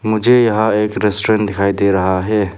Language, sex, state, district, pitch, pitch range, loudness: Hindi, male, Arunachal Pradesh, Papum Pare, 105 Hz, 100-110 Hz, -14 LUFS